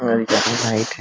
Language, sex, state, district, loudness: Hindi, male, Bihar, Sitamarhi, -18 LUFS